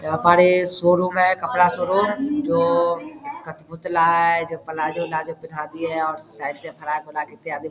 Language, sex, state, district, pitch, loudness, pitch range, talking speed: Hindi, male, Bihar, Vaishali, 165 Hz, -20 LUFS, 155-180 Hz, 150 wpm